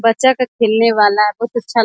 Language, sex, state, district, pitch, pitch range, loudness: Hindi, female, Bihar, East Champaran, 230 Hz, 215-235 Hz, -14 LUFS